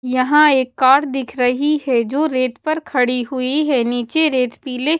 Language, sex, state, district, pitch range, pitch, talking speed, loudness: Hindi, female, Bihar, West Champaran, 250-300 Hz, 260 Hz, 180 wpm, -17 LUFS